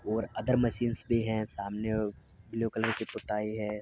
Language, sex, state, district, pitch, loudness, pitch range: Hindi, male, Uttar Pradesh, Muzaffarnagar, 110 Hz, -32 LUFS, 105-115 Hz